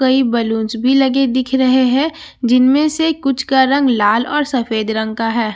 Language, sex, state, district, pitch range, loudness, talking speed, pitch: Hindi, female, Bihar, Katihar, 230-270 Hz, -15 LUFS, 195 wpm, 260 Hz